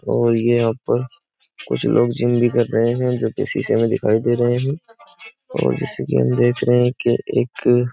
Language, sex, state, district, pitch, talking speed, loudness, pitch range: Hindi, male, Uttar Pradesh, Jyotiba Phule Nagar, 120 Hz, 220 wpm, -19 LUFS, 115-125 Hz